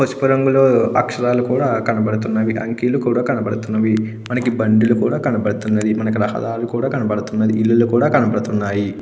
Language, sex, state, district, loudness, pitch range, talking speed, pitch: Telugu, male, Andhra Pradesh, Krishna, -17 LUFS, 110-125 Hz, 135 wpm, 115 Hz